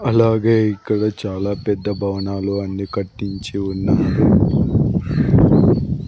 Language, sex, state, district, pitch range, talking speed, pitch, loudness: Telugu, male, Andhra Pradesh, Sri Satya Sai, 100-105 Hz, 80 wpm, 100 Hz, -18 LUFS